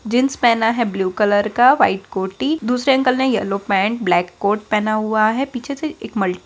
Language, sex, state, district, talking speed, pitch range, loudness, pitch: Hindi, female, Bihar, Darbhanga, 215 wpm, 200-255 Hz, -18 LUFS, 220 Hz